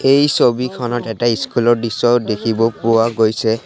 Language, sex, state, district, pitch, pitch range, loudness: Assamese, male, Assam, Sonitpur, 115 Hz, 115-120 Hz, -16 LUFS